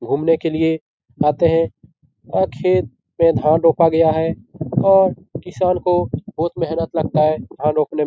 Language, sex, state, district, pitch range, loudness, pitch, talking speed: Hindi, male, Bihar, Jahanabad, 150-165 Hz, -18 LUFS, 160 Hz, 165 wpm